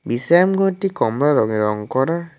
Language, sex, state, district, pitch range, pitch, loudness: Bengali, male, West Bengal, Cooch Behar, 120-175 Hz, 150 Hz, -18 LUFS